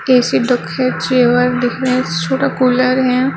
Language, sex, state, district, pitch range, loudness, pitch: Hindi, female, Maharashtra, Gondia, 245-255 Hz, -14 LUFS, 255 Hz